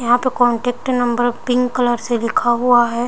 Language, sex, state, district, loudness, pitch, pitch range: Hindi, female, Chhattisgarh, Raigarh, -17 LUFS, 245 Hz, 240-245 Hz